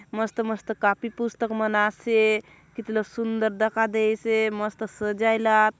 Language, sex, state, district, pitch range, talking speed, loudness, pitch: Halbi, female, Chhattisgarh, Bastar, 215-225 Hz, 135 wpm, -24 LUFS, 220 Hz